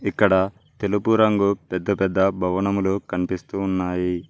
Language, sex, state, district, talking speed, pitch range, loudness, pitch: Telugu, male, Telangana, Mahabubabad, 110 wpm, 90-100 Hz, -22 LUFS, 95 Hz